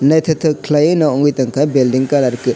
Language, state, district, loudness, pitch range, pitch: Kokborok, Tripura, West Tripura, -14 LUFS, 130-155 Hz, 145 Hz